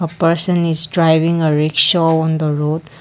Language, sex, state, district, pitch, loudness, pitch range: English, female, Assam, Kamrup Metropolitan, 160 Hz, -15 LUFS, 155-165 Hz